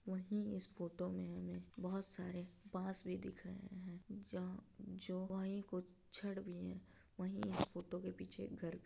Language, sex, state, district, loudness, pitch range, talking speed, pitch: Hindi, female, Bihar, Araria, -46 LUFS, 175-195 Hz, 175 wpm, 185 Hz